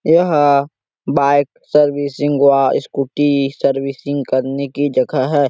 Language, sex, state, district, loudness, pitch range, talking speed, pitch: Hindi, male, Chhattisgarh, Sarguja, -16 LUFS, 135-145 Hz, 110 wpm, 140 Hz